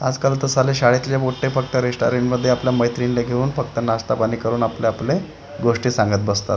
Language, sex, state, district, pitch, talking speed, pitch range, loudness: Marathi, male, Maharashtra, Gondia, 125 Hz, 175 wpm, 115-130 Hz, -19 LUFS